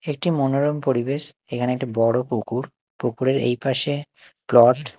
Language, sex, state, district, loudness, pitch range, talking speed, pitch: Bengali, male, Odisha, Nuapada, -22 LUFS, 120-145 Hz, 145 wpm, 130 Hz